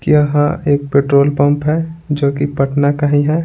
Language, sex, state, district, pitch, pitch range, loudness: Hindi, male, Bihar, Patna, 145 Hz, 140-150 Hz, -14 LUFS